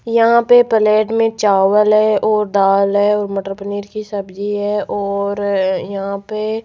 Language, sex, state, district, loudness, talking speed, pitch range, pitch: Hindi, female, Rajasthan, Jaipur, -15 LUFS, 170 wpm, 200-215 Hz, 205 Hz